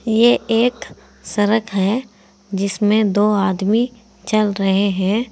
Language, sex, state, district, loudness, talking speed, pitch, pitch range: Hindi, female, Uttar Pradesh, Saharanpur, -18 LUFS, 115 wpm, 210 Hz, 195-225 Hz